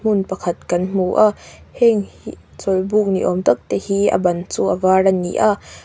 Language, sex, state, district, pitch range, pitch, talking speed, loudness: Mizo, female, Mizoram, Aizawl, 180-205 Hz, 190 Hz, 205 wpm, -18 LUFS